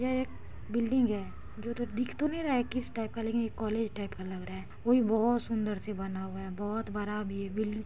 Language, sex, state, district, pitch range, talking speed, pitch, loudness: Maithili, female, Bihar, Samastipur, 205-240 Hz, 265 wpm, 220 Hz, -33 LUFS